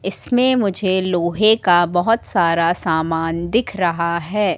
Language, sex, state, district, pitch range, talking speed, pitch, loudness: Hindi, female, Madhya Pradesh, Katni, 170-210 Hz, 130 wpm, 175 Hz, -17 LUFS